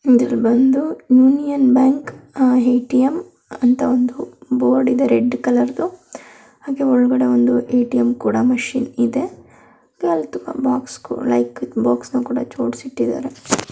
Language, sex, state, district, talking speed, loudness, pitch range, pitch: Kannada, female, Karnataka, Belgaum, 80 wpm, -17 LUFS, 240-265 Hz, 255 Hz